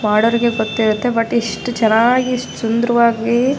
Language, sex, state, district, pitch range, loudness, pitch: Kannada, female, Karnataka, Raichur, 225-240 Hz, -16 LUFS, 235 Hz